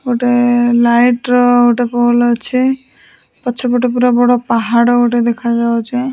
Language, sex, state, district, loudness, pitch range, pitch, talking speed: Odia, female, Odisha, Sambalpur, -12 LUFS, 240-245 Hz, 245 Hz, 115 wpm